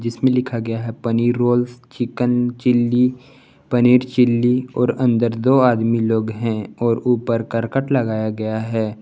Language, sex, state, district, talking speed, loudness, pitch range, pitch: Hindi, male, Jharkhand, Garhwa, 145 wpm, -18 LUFS, 115-125 Hz, 120 Hz